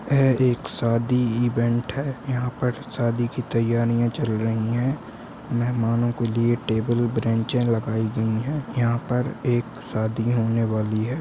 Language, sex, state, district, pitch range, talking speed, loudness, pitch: Hindi, male, Chhattisgarh, Balrampur, 115-125 Hz, 150 wpm, -23 LUFS, 120 Hz